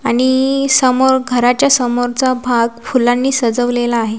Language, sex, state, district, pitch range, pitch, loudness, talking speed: Marathi, female, Maharashtra, Washim, 240-260 Hz, 250 Hz, -13 LUFS, 115 wpm